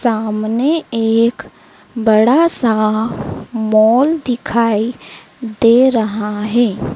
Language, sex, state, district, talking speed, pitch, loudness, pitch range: Hindi, female, Madhya Pradesh, Dhar, 80 wpm, 230 Hz, -14 LUFS, 220-245 Hz